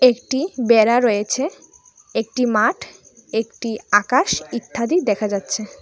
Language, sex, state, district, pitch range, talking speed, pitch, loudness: Bengali, female, Tripura, West Tripura, 215-255 Hz, 105 wpm, 235 Hz, -19 LUFS